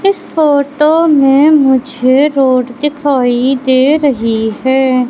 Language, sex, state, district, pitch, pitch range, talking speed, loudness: Hindi, female, Madhya Pradesh, Katni, 270 Hz, 255-295 Hz, 105 wpm, -11 LUFS